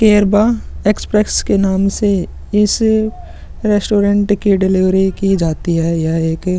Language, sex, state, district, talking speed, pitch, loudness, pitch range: Hindi, male, Chhattisgarh, Sukma, 145 wpm, 200 Hz, -14 LUFS, 185-210 Hz